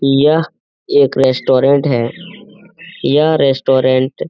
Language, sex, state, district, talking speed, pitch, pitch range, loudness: Hindi, male, Bihar, Jamui, 100 wpm, 145 Hz, 130-180 Hz, -13 LUFS